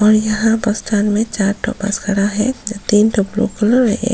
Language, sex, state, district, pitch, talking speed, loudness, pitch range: Hindi, female, Chhattisgarh, Sukma, 215 Hz, 260 wpm, -16 LUFS, 205-225 Hz